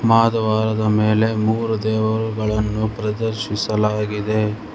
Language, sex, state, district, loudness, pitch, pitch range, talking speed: Kannada, male, Karnataka, Bangalore, -19 LUFS, 110 Hz, 105-110 Hz, 65 wpm